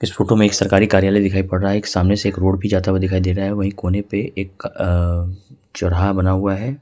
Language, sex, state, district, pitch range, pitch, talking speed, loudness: Hindi, male, Jharkhand, Ranchi, 95-100 Hz, 95 Hz, 275 wpm, -18 LUFS